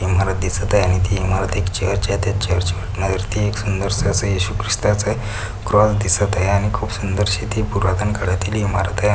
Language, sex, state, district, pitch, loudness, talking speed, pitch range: Marathi, male, Maharashtra, Pune, 100 Hz, -19 LUFS, 210 wpm, 95-105 Hz